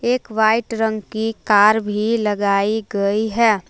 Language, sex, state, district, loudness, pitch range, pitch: Hindi, female, Jharkhand, Palamu, -18 LUFS, 205-225 Hz, 220 Hz